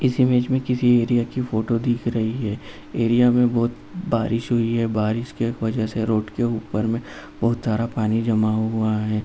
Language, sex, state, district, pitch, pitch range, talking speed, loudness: Hindi, male, Uttar Pradesh, Jalaun, 115 Hz, 110-120 Hz, 200 wpm, -22 LUFS